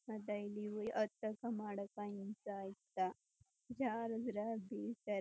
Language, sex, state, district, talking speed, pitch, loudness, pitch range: Kannada, female, Karnataka, Chamarajanagar, 90 wpm, 210 Hz, -44 LUFS, 205-225 Hz